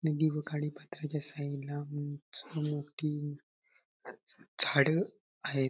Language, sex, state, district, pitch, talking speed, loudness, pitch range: Marathi, male, Maharashtra, Sindhudurg, 150 Hz, 105 wpm, -34 LUFS, 145-150 Hz